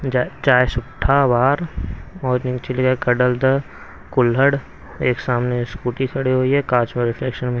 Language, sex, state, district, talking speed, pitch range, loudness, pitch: Hindi, male, Haryana, Rohtak, 160 wpm, 125-135 Hz, -19 LUFS, 125 Hz